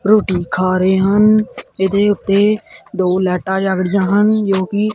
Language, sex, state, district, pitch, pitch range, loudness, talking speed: Punjabi, male, Punjab, Kapurthala, 195 Hz, 185-210 Hz, -15 LUFS, 155 wpm